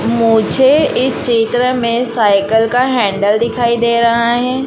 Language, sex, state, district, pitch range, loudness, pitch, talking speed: Hindi, female, Madhya Pradesh, Dhar, 225-250 Hz, -13 LUFS, 235 Hz, 140 wpm